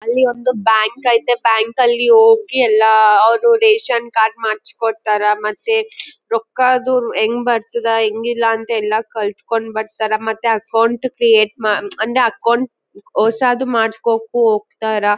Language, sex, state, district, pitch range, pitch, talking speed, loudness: Kannada, female, Karnataka, Gulbarga, 220-245 Hz, 230 Hz, 135 wpm, -15 LUFS